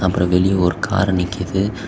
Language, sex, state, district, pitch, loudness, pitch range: Tamil, male, Tamil Nadu, Kanyakumari, 95 Hz, -18 LUFS, 90-95 Hz